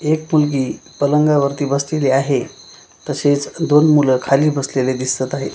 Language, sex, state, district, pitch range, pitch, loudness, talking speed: Marathi, male, Maharashtra, Washim, 135-150 Hz, 140 Hz, -16 LUFS, 140 wpm